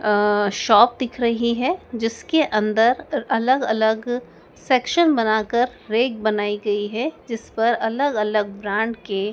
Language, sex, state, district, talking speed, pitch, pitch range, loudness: Hindi, female, Madhya Pradesh, Dhar, 115 wpm, 225 Hz, 210-245 Hz, -20 LUFS